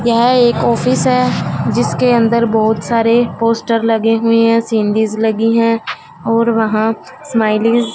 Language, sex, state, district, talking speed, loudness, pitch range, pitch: Hindi, female, Punjab, Fazilka, 145 wpm, -13 LUFS, 220-235 Hz, 230 Hz